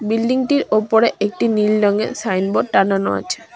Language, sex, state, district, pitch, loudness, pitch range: Bengali, female, West Bengal, Cooch Behar, 215 Hz, -17 LUFS, 205-230 Hz